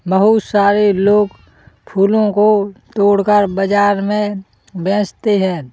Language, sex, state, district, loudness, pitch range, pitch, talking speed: Hindi, female, Uttar Pradesh, Hamirpur, -14 LUFS, 195-210 Hz, 205 Hz, 105 wpm